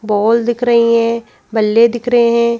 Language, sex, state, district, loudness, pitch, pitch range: Hindi, female, Madhya Pradesh, Bhopal, -13 LUFS, 235 Hz, 230-235 Hz